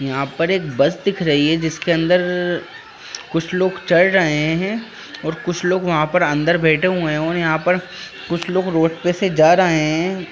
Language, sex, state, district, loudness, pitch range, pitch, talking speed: Hindi, male, Bihar, Jahanabad, -18 LUFS, 160-180 Hz, 170 Hz, 200 wpm